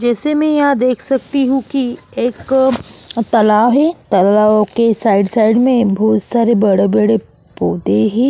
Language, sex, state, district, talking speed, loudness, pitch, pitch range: Hindi, female, Maharashtra, Aurangabad, 150 wpm, -14 LUFS, 230 Hz, 210-265 Hz